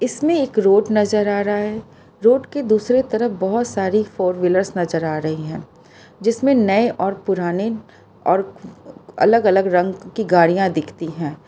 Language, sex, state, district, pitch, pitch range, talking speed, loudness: Hindi, female, Gujarat, Valsad, 200 Hz, 180-225 Hz, 160 wpm, -18 LUFS